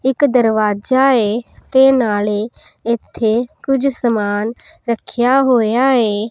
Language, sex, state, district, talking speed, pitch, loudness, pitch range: Punjabi, female, Punjab, Pathankot, 105 wpm, 235 Hz, -15 LUFS, 220-265 Hz